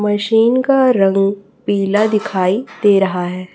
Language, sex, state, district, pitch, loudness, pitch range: Hindi, female, Chhattisgarh, Raipur, 205 Hz, -15 LUFS, 195-220 Hz